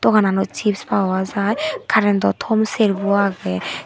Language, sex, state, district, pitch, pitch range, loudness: Chakma, female, Tripura, Dhalai, 200 Hz, 195-215 Hz, -19 LUFS